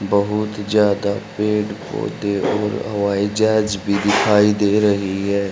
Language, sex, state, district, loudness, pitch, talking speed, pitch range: Hindi, male, Haryana, Rohtak, -18 LUFS, 105 Hz, 130 wpm, 100-105 Hz